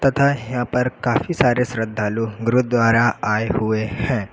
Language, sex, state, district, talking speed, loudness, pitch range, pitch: Hindi, male, Uttar Pradesh, Lucknow, 140 wpm, -19 LUFS, 110-125 Hz, 120 Hz